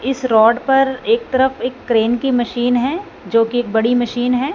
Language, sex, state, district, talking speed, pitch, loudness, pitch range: Hindi, female, Punjab, Fazilka, 210 wpm, 245 Hz, -16 LUFS, 230-260 Hz